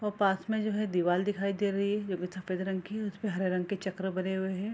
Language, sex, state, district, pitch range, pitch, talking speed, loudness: Hindi, female, Bihar, Kishanganj, 185-205 Hz, 195 Hz, 305 wpm, -32 LUFS